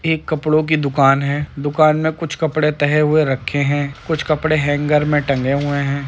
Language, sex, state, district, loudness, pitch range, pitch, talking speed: Hindi, male, Uttar Pradesh, Muzaffarnagar, -17 LUFS, 140-155 Hz, 150 Hz, 185 wpm